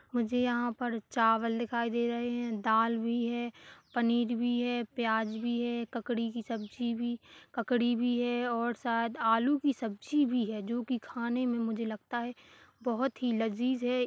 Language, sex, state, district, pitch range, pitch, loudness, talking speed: Hindi, male, Chhattisgarh, Kabirdham, 230-245 Hz, 235 Hz, -32 LUFS, 180 wpm